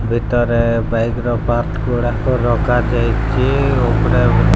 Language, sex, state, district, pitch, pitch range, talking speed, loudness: Odia, male, Odisha, Malkangiri, 120 Hz, 115-125 Hz, 120 wpm, -16 LUFS